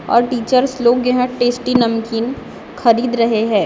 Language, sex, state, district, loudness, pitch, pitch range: Hindi, female, Maharashtra, Gondia, -16 LUFS, 240 Hz, 230-250 Hz